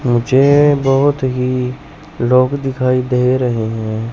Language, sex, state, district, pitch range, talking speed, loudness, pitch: Hindi, male, Chandigarh, Chandigarh, 125-135 Hz, 115 wpm, -14 LUFS, 130 Hz